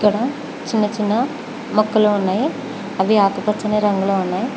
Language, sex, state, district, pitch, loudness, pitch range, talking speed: Telugu, female, Telangana, Mahabubabad, 210 Hz, -19 LUFS, 200-245 Hz, 105 wpm